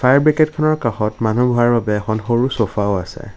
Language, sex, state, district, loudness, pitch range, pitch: Assamese, male, Assam, Kamrup Metropolitan, -17 LUFS, 110-130 Hz, 120 Hz